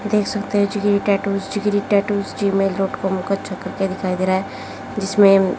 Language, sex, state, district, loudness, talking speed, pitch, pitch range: Hindi, female, Haryana, Jhajjar, -19 LUFS, 185 wpm, 200 Hz, 195-205 Hz